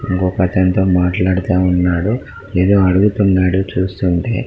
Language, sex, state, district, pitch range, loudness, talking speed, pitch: Telugu, male, Telangana, Karimnagar, 90-100 Hz, -15 LUFS, 95 wpm, 95 Hz